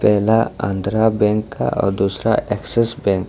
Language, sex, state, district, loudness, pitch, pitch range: Hindi, male, Jharkhand, Ranchi, -18 LUFS, 105 Hz, 100-110 Hz